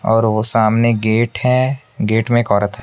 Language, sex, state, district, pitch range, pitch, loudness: Hindi, male, Chhattisgarh, Raipur, 110-120 Hz, 115 Hz, -16 LUFS